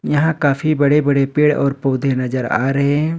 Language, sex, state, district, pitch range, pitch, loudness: Hindi, male, Jharkhand, Ranchi, 135-150 Hz, 140 Hz, -16 LUFS